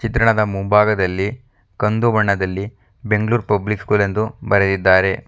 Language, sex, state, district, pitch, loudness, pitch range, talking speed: Kannada, male, Karnataka, Bangalore, 105 Hz, -17 LUFS, 100-110 Hz, 100 wpm